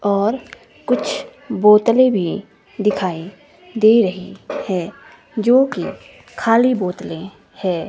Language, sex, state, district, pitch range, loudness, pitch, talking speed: Hindi, female, Himachal Pradesh, Shimla, 185-245 Hz, -17 LUFS, 210 Hz, 90 wpm